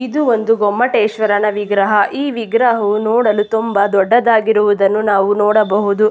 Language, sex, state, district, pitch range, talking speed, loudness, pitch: Kannada, female, Karnataka, Chamarajanagar, 205-230 Hz, 110 wpm, -14 LUFS, 215 Hz